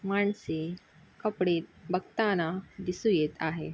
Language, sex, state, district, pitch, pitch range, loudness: Marathi, female, Maharashtra, Sindhudurg, 180 Hz, 165-200 Hz, -31 LUFS